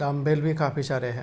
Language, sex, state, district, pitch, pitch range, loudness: Hindi, male, Uttar Pradesh, Hamirpur, 140 Hz, 135-150 Hz, -25 LUFS